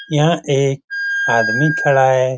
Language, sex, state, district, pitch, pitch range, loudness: Hindi, male, Bihar, Lakhisarai, 145 Hz, 130-165 Hz, -15 LUFS